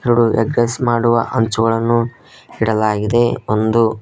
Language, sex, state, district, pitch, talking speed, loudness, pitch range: Kannada, male, Karnataka, Koppal, 115 Hz, 105 wpm, -16 LUFS, 110-120 Hz